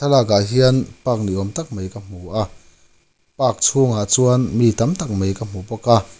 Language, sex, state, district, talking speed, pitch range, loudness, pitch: Mizo, male, Mizoram, Aizawl, 205 wpm, 95-125 Hz, -18 LUFS, 110 Hz